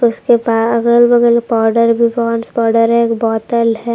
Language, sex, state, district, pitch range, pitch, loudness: Hindi, female, Jharkhand, Palamu, 230-235 Hz, 230 Hz, -12 LUFS